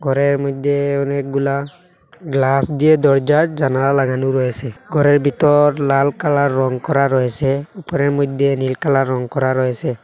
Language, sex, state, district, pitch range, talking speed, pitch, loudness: Bengali, male, Assam, Hailakandi, 135-145 Hz, 135 wpm, 140 Hz, -16 LUFS